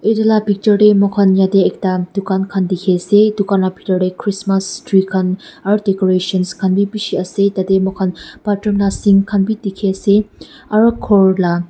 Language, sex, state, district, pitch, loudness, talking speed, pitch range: Nagamese, female, Nagaland, Dimapur, 195 Hz, -15 LUFS, 185 wpm, 190-205 Hz